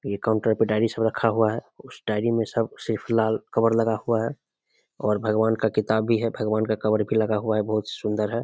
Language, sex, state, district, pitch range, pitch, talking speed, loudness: Hindi, male, Bihar, Samastipur, 110-115 Hz, 110 Hz, 250 wpm, -24 LUFS